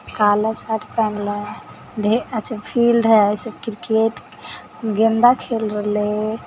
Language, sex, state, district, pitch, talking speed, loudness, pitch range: Hindi, female, Bihar, Samastipur, 220 Hz, 140 wpm, -19 LUFS, 210-225 Hz